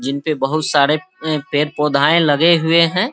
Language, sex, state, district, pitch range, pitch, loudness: Hindi, male, Bihar, Saharsa, 145-165 Hz, 155 Hz, -15 LUFS